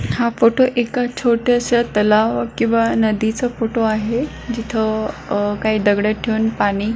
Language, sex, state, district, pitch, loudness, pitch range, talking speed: Marathi, female, Maharashtra, Solapur, 225 Hz, -18 LUFS, 215-235 Hz, 130 wpm